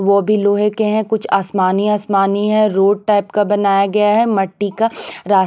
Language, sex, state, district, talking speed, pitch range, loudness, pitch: Hindi, female, Punjab, Pathankot, 200 wpm, 195-210 Hz, -15 LUFS, 205 Hz